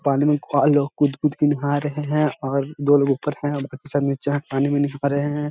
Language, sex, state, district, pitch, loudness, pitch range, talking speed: Hindi, male, Bihar, Jahanabad, 145 Hz, -21 LUFS, 140-145 Hz, 270 wpm